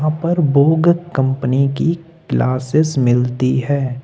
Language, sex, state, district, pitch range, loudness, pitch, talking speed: Hindi, male, Jharkhand, Ranchi, 130-160 Hz, -16 LUFS, 140 Hz, 105 wpm